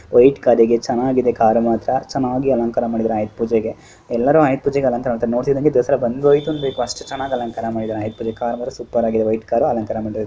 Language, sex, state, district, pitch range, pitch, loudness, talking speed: Kannada, male, Karnataka, Dharwad, 115-130 Hz, 120 Hz, -18 LUFS, 195 wpm